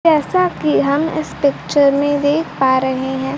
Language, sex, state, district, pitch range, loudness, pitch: Hindi, female, Bihar, Kaimur, 270-310 Hz, -16 LUFS, 285 Hz